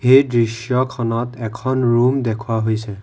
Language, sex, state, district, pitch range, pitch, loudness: Assamese, male, Assam, Kamrup Metropolitan, 115-125 Hz, 120 Hz, -18 LUFS